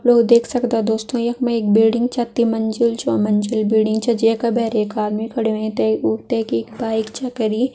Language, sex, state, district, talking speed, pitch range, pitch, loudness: Garhwali, female, Uttarakhand, Tehri Garhwal, 200 wpm, 220-235 Hz, 225 Hz, -18 LUFS